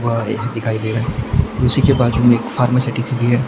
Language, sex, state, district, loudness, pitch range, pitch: Hindi, male, Maharashtra, Gondia, -17 LUFS, 115-125 Hz, 120 Hz